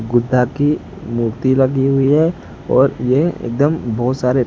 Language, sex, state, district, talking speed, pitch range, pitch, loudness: Hindi, male, Gujarat, Gandhinagar, 145 wpm, 120-140 Hz, 130 Hz, -16 LUFS